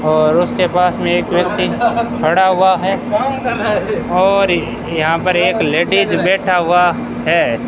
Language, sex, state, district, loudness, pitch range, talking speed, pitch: Hindi, male, Rajasthan, Bikaner, -14 LUFS, 175-210 Hz, 135 wpm, 185 Hz